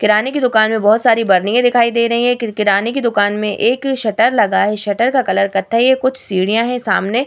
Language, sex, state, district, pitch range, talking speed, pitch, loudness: Hindi, female, Bihar, Vaishali, 205-245 Hz, 240 wpm, 225 Hz, -14 LUFS